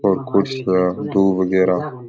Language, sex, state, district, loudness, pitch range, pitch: Rajasthani, male, Rajasthan, Nagaur, -18 LUFS, 95-120 Hz, 95 Hz